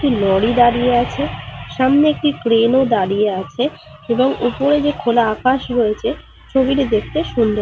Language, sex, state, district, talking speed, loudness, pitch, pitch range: Bengali, female, Jharkhand, Sahebganj, 155 wpm, -16 LUFS, 245 Hz, 225-270 Hz